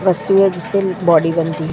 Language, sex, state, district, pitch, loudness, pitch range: Hindi, female, Uttar Pradesh, Etah, 175 Hz, -15 LUFS, 165-195 Hz